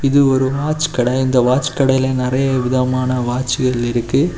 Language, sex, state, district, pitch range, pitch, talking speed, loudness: Tamil, male, Tamil Nadu, Kanyakumari, 125-135 Hz, 130 Hz, 150 wpm, -16 LUFS